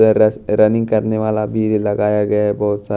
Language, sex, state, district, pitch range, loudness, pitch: Hindi, male, Chhattisgarh, Raipur, 105-110 Hz, -16 LUFS, 110 Hz